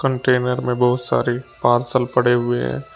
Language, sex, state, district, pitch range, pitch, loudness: Hindi, male, Uttar Pradesh, Shamli, 120-125 Hz, 125 Hz, -19 LUFS